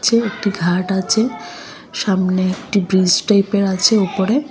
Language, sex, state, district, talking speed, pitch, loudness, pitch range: Bengali, female, Assam, Hailakandi, 135 wpm, 195 Hz, -16 LUFS, 185-220 Hz